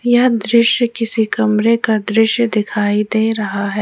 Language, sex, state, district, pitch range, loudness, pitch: Hindi, female, Jharkhand, Ranchi, 210-235 Hz, -15 LUFS, 220 Hz